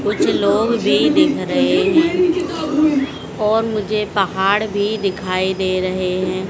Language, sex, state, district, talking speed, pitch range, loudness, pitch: Hindi, female, Madhya Pradesh, Dhar, 130 wpm, 190-295 Hz, -17 LUFS, 210 Hz